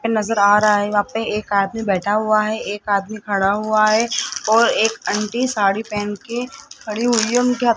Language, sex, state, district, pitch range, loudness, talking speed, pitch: Hindi, male, Rajasthan, Jaipur, 205-230 Hz, -18 LUFS, 200 wpm, 215 Hz